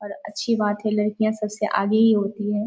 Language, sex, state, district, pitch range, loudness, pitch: Hindi, female, Bihar, Jamui, 210-215 Hz, -22 LUFS, 210 Hz